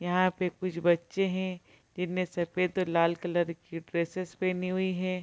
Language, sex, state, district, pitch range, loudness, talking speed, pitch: Hindi, female, Bihar, Kishanganj, 170-185 Hz, -30 LUFS, 170 wpm, 180 Hz